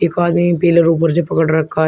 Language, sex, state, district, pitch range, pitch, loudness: Hindi, male, Uttar Pradesh, Shamli, 160-170 Hz, 170 Hz, -14 LUFS